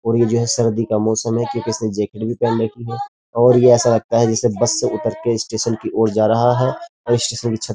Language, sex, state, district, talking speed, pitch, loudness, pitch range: Hindi, male, Uttar Pradesh, Jyotiba Phule Nagar, 280 wpm, 115 Hz, -17 LUFS, 110-120 Hz